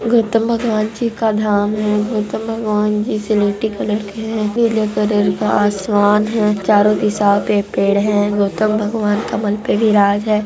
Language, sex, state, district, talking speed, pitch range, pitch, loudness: Hindi, female, Andhra Pradesh, Anantapur, 155 wpm, 205-220 Hz, 210 Hz, -16 LUFS